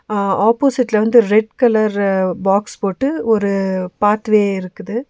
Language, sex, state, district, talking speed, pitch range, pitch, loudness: Tamil, female, Tamil Nadu, Nilgiris, 115 wpm, 195-230 Hz, 210 Hz, -16 LUFS